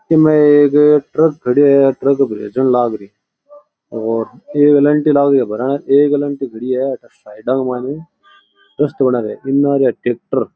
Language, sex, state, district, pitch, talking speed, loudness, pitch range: Rajasthani, male, Rajasthan, Churu, 140 Hz, 90 wpm, -14 LUFS, 130-150 Hz